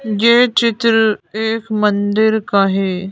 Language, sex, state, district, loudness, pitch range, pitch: Hindi, female, Madhya Pradesh, Bhopal, -15 LUFS, 205-225 Hz, 220 Hz